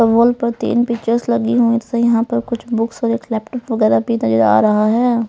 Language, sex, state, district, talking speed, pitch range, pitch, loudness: Hindi, male, Punjab, Pathankot, 215 wpm, 225-235 Hz, 230 Hz, -16 LUFS